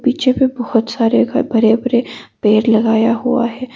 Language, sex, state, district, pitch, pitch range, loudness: Hindi, female, Arunachal Pradesh, Longding, 235 Hz, 225-255 Hz, -15 LUFS